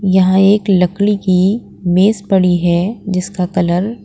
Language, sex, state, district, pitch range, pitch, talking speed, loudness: Hindi, female, Uttar Pradesh, Lalitpur, 180-200 Hz, 190 Hz, 150 wpm, -14 LUFS